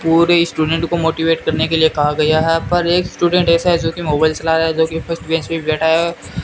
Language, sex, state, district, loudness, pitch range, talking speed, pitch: Hindi, male, Rajasthan, Bikaner, -15 LUFS, 160-170 Hz, 260 wpm, 165 Hz